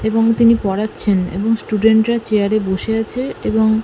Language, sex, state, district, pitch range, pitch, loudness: Bengali, female, West Bengal, North 24 Parganas, 210-225 Hz, 220 Hz, -16 LUFS